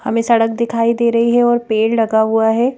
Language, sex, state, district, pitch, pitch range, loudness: Hindi, female, Madhya Pradesh, Bhopal, 230 Hz, 225-235 Hz, -14 LUFS